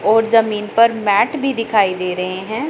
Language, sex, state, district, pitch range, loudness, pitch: Hindi, female, Punjab, Pathankot, 200-230 Hz, -16 LUFS, 220 Hz